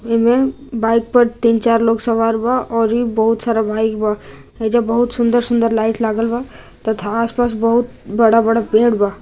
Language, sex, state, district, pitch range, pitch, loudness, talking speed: Bhojpuri, female, Bihar, Gopalganj, 225-235 Hz, 230 Hz, -16 LUFS, 155 wpm